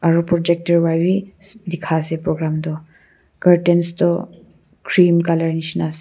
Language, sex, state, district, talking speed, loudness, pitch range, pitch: Nagamese, female, Nagaland, Kohima, 140 wpm, -18 LUFS, 160-175 Hz, 170 Hz